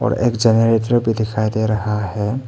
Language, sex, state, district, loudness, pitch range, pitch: Hindi, male, Arunachal Pradesh, Papum Pare, -17 LUFS, 110-120 Hz, 110 Hz